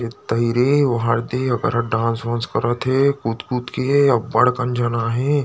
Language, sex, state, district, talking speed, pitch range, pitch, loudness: Chhattisgarhi, male, Chhattisgarh, Rajnandgaon, 175 wpm, 115-130 Hz, 120 Hz, -19 LUFS